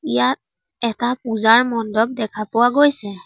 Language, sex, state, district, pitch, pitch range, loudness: Assamese, female, Assam, Sonitpur, 230 Hz, 220-240 Hz, -18 LUFS